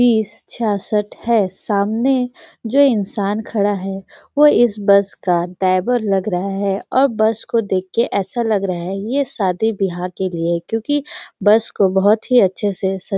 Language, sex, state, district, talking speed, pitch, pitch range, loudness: Hindi, female, Chhattisgarh, Sarguja, 175 wpm, 205 Hz, 195-230 Hz, -18 LUFS